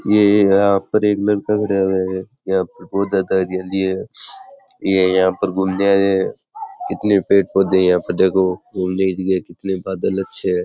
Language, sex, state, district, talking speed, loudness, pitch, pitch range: Rajasthani, male, Rajasthan, Churu, 185 wpm, -17 LUFS, 95 Hz, 95-105 Hz